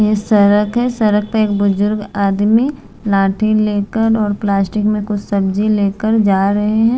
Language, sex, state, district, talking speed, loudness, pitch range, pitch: Hindi, female, Bihar, Patna, 165 wpm, -15 LUFS, 200-215 Hz, 210 Hz